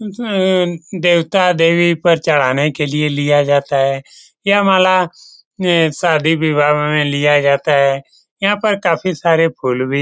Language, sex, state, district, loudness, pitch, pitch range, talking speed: Hindi, male, Bihar, Lakhisarai, -14 LUFS, 165 Hz, 145-180 Hz, 150 wpm